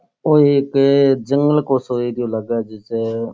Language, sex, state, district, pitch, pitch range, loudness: Rajasthani, male, Rajasthan, Churu, 130 Hz, 115-140 Hz, -17 LUFS